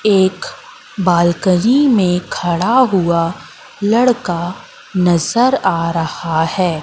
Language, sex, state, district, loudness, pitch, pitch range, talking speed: Hindi, female, Madhya Pradesh, Katni, -15 LUFS, 185 Hz, 170-215 Hz, 90 wpm